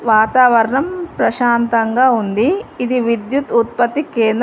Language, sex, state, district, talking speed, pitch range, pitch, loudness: Telugu, female, Telangana, Mahabubabad, 95 wpm, 230-260 Hz, 235 Hz, -15 LUFS